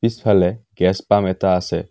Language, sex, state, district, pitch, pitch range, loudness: Assamese, male, Assam, Kamrup Metropolitan, 95 Hz, 90-105 Hz, -18 LUFS